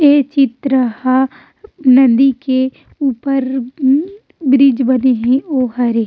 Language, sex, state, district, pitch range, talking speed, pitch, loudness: Chhattisgarhi, female, Chhattisgarh, Rajnandgaon, 255-275 Hz, 120 wpm, 265 Hz, -14 LUFS